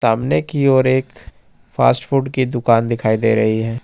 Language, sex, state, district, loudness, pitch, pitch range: Hindi, male, Jharkhand, Ranchi, -16 LUFS, 120 Hz, 110-130 Hz